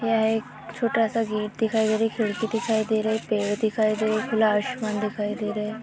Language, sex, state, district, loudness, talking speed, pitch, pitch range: Hindi, female, Uttar Pradesh, Budaun, -25 LUFS, 235 wpm, 220 Hz, 215-225 Hz